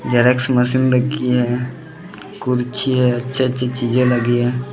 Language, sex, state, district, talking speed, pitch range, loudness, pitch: Hindi, male, Maharashtra, Gondia, 140 wpm, 125-130 Hz, -17 LUFS, 125 Hz